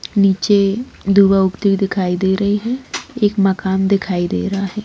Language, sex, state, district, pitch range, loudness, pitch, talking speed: Hindi, female, Bihar, Lakhisarai, 190-205 Hz, -16 LUFS, 195 Hz, 160 wpm